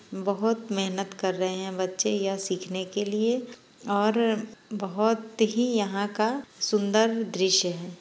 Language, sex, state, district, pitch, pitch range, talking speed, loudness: Hindi, female, Bihar, Muzaffarpur, 205 Hz, 190-225 Hz, 135 wpm, -27 LUFS